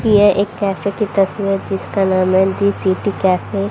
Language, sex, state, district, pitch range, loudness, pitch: Hindi, female, Haryana, Rohtak, 190-205 Hz, -16 LUFS, 195 Hz